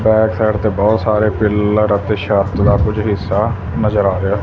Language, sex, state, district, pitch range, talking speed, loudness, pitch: Punjabi, male, Punjab, Fazilka, 100-110 Hz, 205 wpm, -15 LUFS, 105 Hz